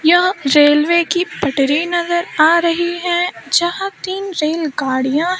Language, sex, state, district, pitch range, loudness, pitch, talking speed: Hindi, female, Maharashtra, Mumbai Suburban, 305-355 Hz, -15 LUFS, 340 Hz, 135 wpm